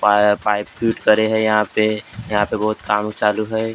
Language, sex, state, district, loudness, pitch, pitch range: Hindi, male, Maharashtra, Gondia, -18 LUFS, 105 Hz, 105-110 Hz